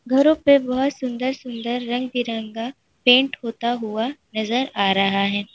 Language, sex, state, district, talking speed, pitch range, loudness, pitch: Hindi, female, Uttar Pradesh, Lalitpur, 150 wpm, 225-260 Hz, -21 LUFS, 245 Hz